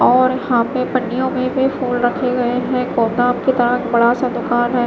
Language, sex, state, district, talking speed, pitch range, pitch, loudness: Hindi, female, Maharashtra, Mumbai Suburban, 195 wpm, 240-255 Hz, 250 Hz, -17 LUFS